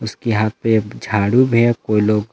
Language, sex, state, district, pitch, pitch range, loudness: Hindi, male, Jharkhand, Palamu, 110 Hz, 105-115 Hz, -17 LUFS